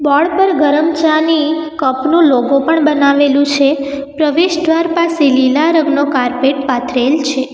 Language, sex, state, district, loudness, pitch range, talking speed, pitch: Gujarati, female, Gujarat, Valsad, -12 LUFS, 275-320 Hz, 135 wpm, 290 Hz